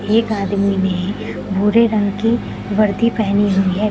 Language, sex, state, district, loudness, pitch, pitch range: Hindi, female, Uttar Pradesh, Lucknow, -17 LUFS, 205 Hz, 200-215 Hz